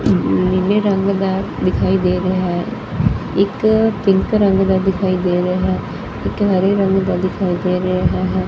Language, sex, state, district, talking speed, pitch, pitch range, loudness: Punjabi, female, Punjab, Fazilka, 165 wpm, 190 Hz, 180-195 Hz, -17 LUFS